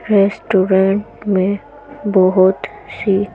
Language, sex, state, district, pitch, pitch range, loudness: Hindi, female, Madhya Pradesh, Bhopal, 195 Hz, 190-205 Hz, -15 LUFS